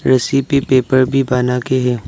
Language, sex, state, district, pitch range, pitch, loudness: Hindi, male, Arunachal Pradesh, Lower Dibang Valley, 125-135 Hz, 130 Hz, -15 LUFS